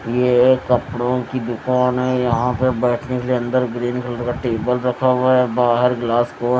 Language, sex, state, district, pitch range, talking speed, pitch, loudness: Hindi, male, Odisha, Nuapada, 120-125 Hz, 200 wpm, 125 Hz, -18 LUFS